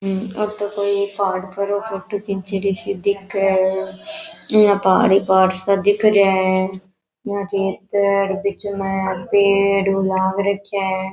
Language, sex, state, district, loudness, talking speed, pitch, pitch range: Rajasthani, female, Rajasthan, Nagaur, -18 LUFS, 135 wpm, 195 Hz, 190-200 Hz